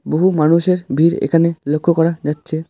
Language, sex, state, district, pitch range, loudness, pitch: Bengali, male, West Bengal, Alipurduar, 155-170 Hz, -16 LUFS, 165 Hz